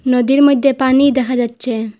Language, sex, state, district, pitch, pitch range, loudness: Bengali, female, Assam, Hailakandi, 260 Hz, 245-275 Hz, -13 LUFS